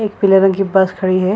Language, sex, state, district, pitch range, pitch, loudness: Hindi, female, Chhattisgarh, Bilaspur, 190-195 Hz, 195 Hz, -14 LUFS